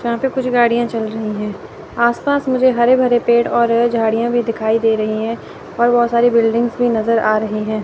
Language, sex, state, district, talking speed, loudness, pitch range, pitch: Hindi, female, Chandigarh, Chandigarh, 220 wpm, -16 LUFS, 220-240 Hz, 235 Hz